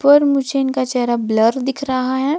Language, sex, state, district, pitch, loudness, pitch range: Hindi, female, Himachal Pradesh, Shimla, 265 Hz, -17 LUFS, 250-275 Hz